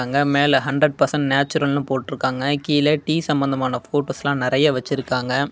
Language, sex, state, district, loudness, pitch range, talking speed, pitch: Tamil, male, Tamil Nadu, Namakkal, -20 LUFS, 135-145 Hz, 130 wpm, 140 Hz